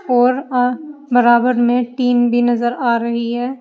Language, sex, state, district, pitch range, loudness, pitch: Hindi, female, Uttar Pradesh, Saharanpur, 240-250 Hz, -16 LUFS, 245 Hz